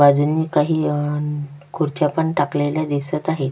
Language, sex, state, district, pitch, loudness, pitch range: Marathi, female, Maharashtra, Sindhudurg, 150 Hz, -20 LUFS, 145-155 Hz